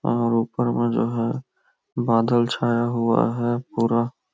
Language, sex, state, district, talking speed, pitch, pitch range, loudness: Hindi, male, Chhattisgarh, Korba, 140 wpm, 120 Hz, 115-120 Hz, -22 LUFS